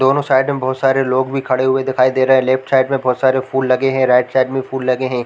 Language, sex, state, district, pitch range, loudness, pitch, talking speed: Hindi, male, Chhattisgarh, Balrampur, 130-135 Hz, -15 LUFS, 130 Hz, 320 wpm